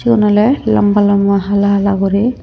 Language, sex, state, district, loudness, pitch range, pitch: Chakma, female, Tripura, Unakoti, -12 LUFS, 200-220 Hz, 205 Hz